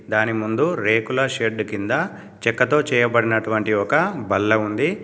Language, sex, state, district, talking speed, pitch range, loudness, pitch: Telugu, male, Telangana, Komaram Bheem, 120 wpm, 110-120 Hz, -20 LUFS, 110 Hz